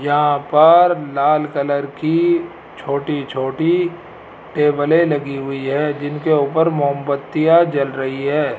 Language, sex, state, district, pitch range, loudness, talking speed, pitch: Hindi, male, Rajasthan, Jaipur, 140-160 Hz, -17 LUFS, 120 wpm, 145 Hz